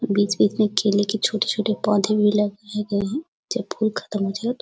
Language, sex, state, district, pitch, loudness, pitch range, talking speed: Hindi, female, Uttar Pradesh, Deoria, 210 Hz, -22 LUFS, 205-220 Hz, 235 wpm